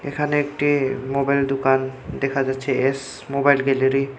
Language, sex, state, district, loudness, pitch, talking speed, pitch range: Bengali, male, Tripura, Unakoti, -21 LUFS, 135 Hz, 145 wpm, 135-140 Hz